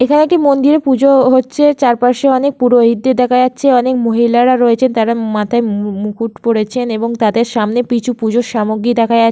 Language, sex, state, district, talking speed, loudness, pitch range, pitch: Bengali, female, West Bengal, Malda, 180 wpm, -12 LUFS, 230-260 Hz, 240 Hz